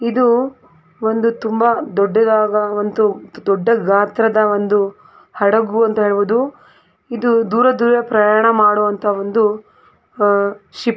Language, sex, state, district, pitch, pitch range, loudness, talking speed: Kannada, female, Karnataka, Belgaum, 220 Hz, 205-235 Hz, -15 LUFS, 100 wpm